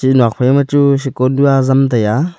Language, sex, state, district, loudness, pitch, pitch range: Wancho, male, Arunachal Pradesh, Longding, -12 LUFS, 135 Hz, 130-140 Hz